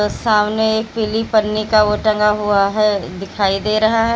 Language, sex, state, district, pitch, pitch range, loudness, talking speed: Hindi, female, Uttar Pradesh, Lalitpur, 215 Hz, 210-220 Hz, -16 LUFS, 185 wpm